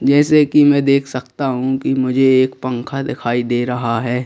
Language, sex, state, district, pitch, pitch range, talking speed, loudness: Hindi, male, Madhya Pradesh, Bhopal, 130 Hz, 125-140 Hz, 195 wpm, -16 LUFS